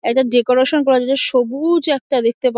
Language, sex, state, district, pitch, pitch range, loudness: Bengali, female, West Bengal, Dakshin Dinajpur, 260 Hz, 245-275 Hz, -16 LUFS